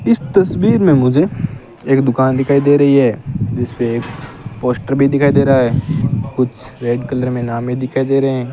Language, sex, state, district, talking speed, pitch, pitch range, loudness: Hindi, male, Rajasthan, Bikaner, 205 wpm, 130 Hz, 125-140 Hz, -15 LUFS